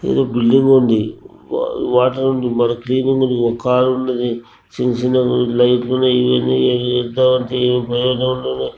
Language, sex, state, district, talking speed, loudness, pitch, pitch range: Telugu, male, Telangana, Nalgonda, 110 wpm, -16 LUFS, 125 Hz, 120-130 Hz